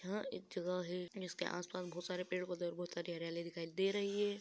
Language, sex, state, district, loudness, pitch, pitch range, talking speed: Hindi, male, Chhattisgarh, Balrampur, -42 LUFS, 180 Hz, 175-185 Hz, 245 wpm